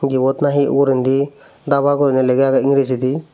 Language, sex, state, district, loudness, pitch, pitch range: Chakma, male, Tripura, Dhalai, -16 LUFS, 135 Hz, 130-140 Hz